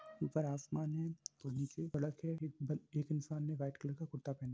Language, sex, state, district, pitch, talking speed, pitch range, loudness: Hindi, male, Bihar, Samastipur, 150 Hz, 225 wpm, 140-155 Hz, -42 LUFS